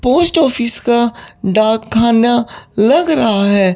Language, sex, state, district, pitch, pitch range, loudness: Hindi, male, Chandigarh, Chandigarh, 235 Hz, 220-255 Hz, -12 LUFS